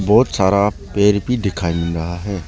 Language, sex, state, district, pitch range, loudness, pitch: Hindi, male, Arunachal Pradesh, Lower Dibang Valley, 85-105 Hz, -17 LUFS, 100 Hz